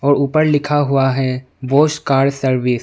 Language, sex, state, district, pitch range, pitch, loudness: Hindi, male, Arunachal Pradesh, Longding, 130-145 Hz, 135 Hz, -16 LUFS